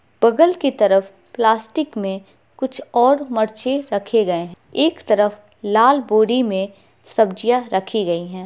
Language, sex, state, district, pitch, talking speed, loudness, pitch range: Hindi, female, Bihar, Gopalganj, 220 Hz, 140 wpm, -18 LUFS, 195-250 Hz